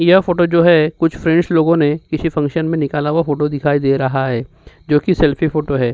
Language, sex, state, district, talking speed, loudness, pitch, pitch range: Hindi, male, Uttar Pradesh, Jyotiba Phule Nagar, 220 wpm, -15 LUFS, 155 Hz, 145-165 Hz